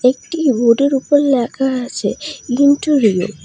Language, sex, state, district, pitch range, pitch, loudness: Bengali, female, West Bengal, Alipurduar, 240-285 Hz, 265 Hz, -15 LUFS